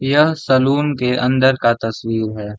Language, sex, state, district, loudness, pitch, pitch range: Hindi, male, Bihar, Gaya, -16 LUFS, 130 Hz, 115-140 Hz